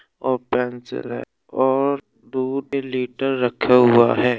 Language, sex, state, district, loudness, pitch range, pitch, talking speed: Hindi, male, Uttar Pradesh, Budaun, -20 LUFS, 125-135 Hz, 125 Hz, 125 wpm